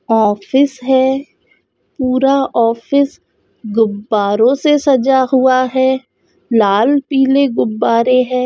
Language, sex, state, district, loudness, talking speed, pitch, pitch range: Hindi, female, Goa, North and South Goa, -13 LUFS, 90 wpm, 260 Hz, 230-270 Hz